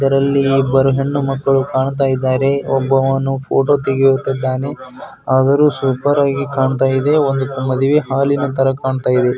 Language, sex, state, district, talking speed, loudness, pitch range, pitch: Kannada, male, Karnataka, Bijapur, 95 wpm, -15 LUFS, 130-140 Hz, 135 Hz